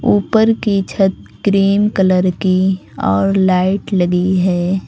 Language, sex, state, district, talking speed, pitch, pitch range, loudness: Hindi, female, Uttar Pradesh, Lucknow, 125 wpm, 190 Hz, 185-200 Hz, -15 LUFS